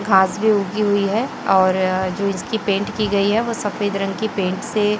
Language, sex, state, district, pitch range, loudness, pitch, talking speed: Hindi, female, Chhattisgarh, Raipur, 195-215 Hz, -19 LUFS, 200 Hz, 215 wpm